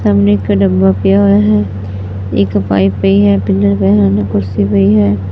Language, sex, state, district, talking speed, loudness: Punjabi, female, Punjab, Fazilka, 180 wpm, -11 LUFS